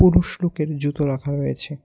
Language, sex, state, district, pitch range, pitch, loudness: Bengali, male, Tripura, West Tripura, 135-150 Hz, 145 Hz, -22 LUFS